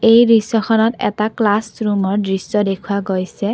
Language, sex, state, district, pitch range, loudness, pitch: Assamese, female, Assam, Kamrup Metropolitan, 200-225 Hz, -16 LUFS, 210 Hz